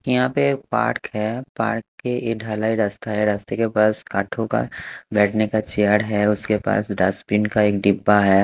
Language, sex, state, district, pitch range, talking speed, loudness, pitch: Hindi, male, Haryana, Charkhi Dadri, 105-115 Hz, 185 wpm, -21 LUFS, 105 Hz